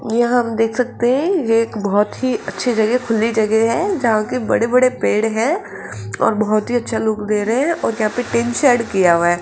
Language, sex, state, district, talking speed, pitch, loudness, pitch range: Hindi, female, Rajasthan, Jaipur, 215 wpm, 225 Hz, -17 LUFS, 215-245 Hz